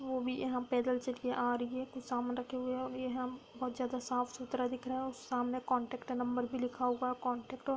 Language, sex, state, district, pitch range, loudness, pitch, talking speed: Hindi, female, Bihar, Darbhanga, 245-255 Hz, -37 LUFS, 250 Hz, 265 wpm